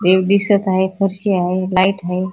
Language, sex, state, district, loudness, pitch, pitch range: Marathi, female, Maharashtra, Chandrapur, -16 LUFS, 190 Hz, 185-195 Hz